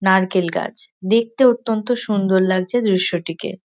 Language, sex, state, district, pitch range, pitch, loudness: Bengali, female, West Bengal, North 24 Parganas, 185-230 Hz, 195 Hz, -18 LUFS